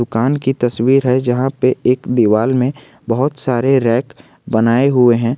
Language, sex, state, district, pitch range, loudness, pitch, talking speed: Hindi, male, Jharkhand, Garhwa, 120-135 Hz, -14 LUFS, 125 Hz, 165 wpm